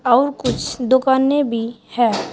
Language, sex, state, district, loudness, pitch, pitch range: Hindi, female, Uttar Pradesh, Saharanpur, -18 LUFS, 255 Hz, 235-270 Hz